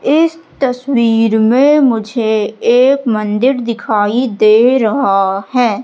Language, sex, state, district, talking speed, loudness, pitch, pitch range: Hindi, female, Madhya Pradesh, Katni, 105 wpm, -12 LUFS, 235 Hz, 215-260 Hz